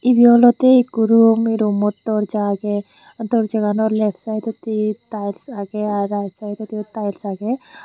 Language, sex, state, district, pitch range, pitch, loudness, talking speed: Chakma, female, Tripura, Unakoti, 205-230 Hz, 215 Hz, -18 LUFS, 135 wpm